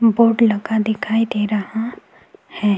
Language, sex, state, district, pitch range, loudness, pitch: Hindi, female, Goa, North and South Goa, 210-225 Hz, -18 LUFS, 220 Hz